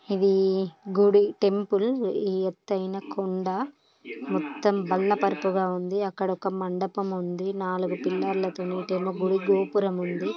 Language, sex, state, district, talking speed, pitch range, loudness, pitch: Telugu, female, Andhra Pradesh, Chittoor, 110 wpm, 185-200 Hz, -26 LUFS, 190 Hz